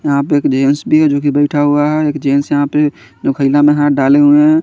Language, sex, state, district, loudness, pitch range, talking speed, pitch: Hindi, male, Chandigarh, Chandigarh, -12 LUFS, 140-150 Hz, 260 wpm, 145 Hz